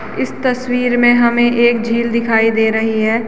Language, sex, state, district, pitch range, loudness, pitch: Hindi, female, Uttarakhand, Tehri Garhwal, 225-240 Hz, -14 LUFS, 235 Hz